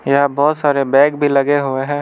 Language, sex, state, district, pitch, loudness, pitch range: Hindi, male, Arunachal Pradesh, Lower Dibang Valley, 140 Hz, -15 LUFS, 140-145 Hz